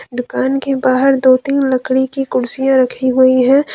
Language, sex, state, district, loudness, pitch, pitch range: Hindi, female, Jharkhand, Deoghar, -14 LUFS, 260 Hz, 255-270 Hz